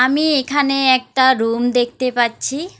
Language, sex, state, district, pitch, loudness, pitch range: Bengali, female, West Bengal, Alipurduar, 260 Hz, -16 LUFS, 245-280 Hz